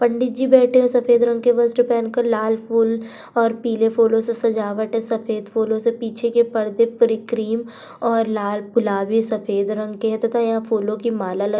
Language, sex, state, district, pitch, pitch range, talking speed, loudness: Hindi, female, Uttar Pradesh, Budaun, 230 Hz, 220-235 Hz, 190 wpm, -19 LUFS